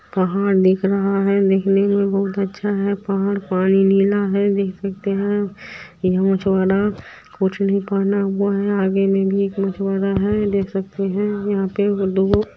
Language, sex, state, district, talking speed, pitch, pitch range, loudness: Maithili, female, Bihar, Supaul, 135 wpm, 195 Hz, 195-200 Hz, -19 LUFS